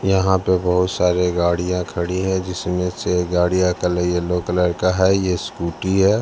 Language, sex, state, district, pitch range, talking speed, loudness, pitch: Hindi, male, Bihar, Patna, 90-95 Hz, 195 wpm, -19 LUFS, 90 Hz